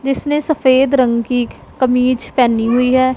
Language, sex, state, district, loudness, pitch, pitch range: Hindi, female, Punjab, Pathankot, -14 LUFS, 255 Hz, 250-270 Hz